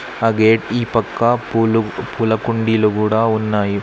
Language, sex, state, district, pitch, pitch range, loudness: Telugu, male, Andhra Pradesh, Sri Satya Sai, 115 Hz, 110-115 Hz, -17 LUFS